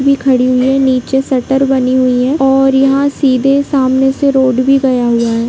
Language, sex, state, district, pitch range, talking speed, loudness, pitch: Hindi, female, Bihar, Sitamarhi, 255-270 Hz, 195 wpm, -11 LUFS, 265 Hz